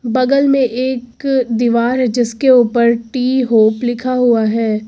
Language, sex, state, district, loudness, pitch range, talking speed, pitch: Hindi, female, Uttar Pradesh, Lucknow, -14 LUFS, 235-255 Hz, 145 wpm, 245 Hz